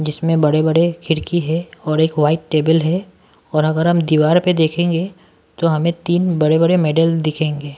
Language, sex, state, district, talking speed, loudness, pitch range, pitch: Hindi, male, Maharashtra, Washim, 160 wpm, -16 LUFS, 155-170 Hz, 160 Hz